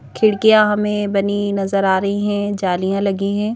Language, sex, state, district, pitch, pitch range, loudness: Hindi, female, Madhya Pradesh, Bhopal, 200 Hz, 195-205 Hz, -17 LUFS